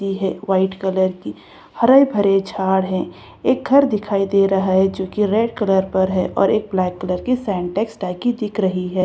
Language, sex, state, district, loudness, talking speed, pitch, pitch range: Hindi, female, Bihar, Katihar, -18 LUFS, 185 wpm, 195 Hz, 190-210 Hz